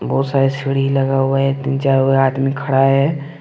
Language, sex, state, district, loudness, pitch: Hindi, male, Jharkhand, Deoghar, -16 LUFS, 135 Hz